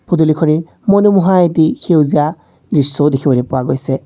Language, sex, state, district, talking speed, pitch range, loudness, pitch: Assamese, male, Assam, Kamrup Metropolitan, 120 wpm, 135-175 Hz, -13 LUFS, 155 Hz